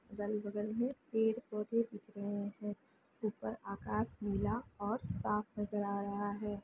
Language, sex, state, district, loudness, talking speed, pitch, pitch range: Hindi, female, Chhattisgarh, Sukma, -39 LUFS, 135 wpm, 210 Hz, 205-220 Hz